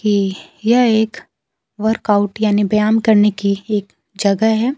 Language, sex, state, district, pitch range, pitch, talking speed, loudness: Hindi, female, Bihar, Kaimur, 205-220 Hz, 215 Hz, 140 wpm, -16 LUFS